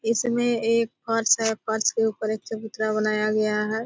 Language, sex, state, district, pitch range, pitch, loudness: Hindi, female, Bihar, Purnia, 215-230 Hz, 220 Hz, -24 LUFS